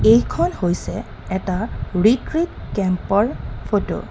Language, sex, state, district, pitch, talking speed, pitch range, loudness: Assamese, female, Assam, Kamrup Metropolitan, 185 Hz, 115 wpm, 125-210 Hz, -21 LUFS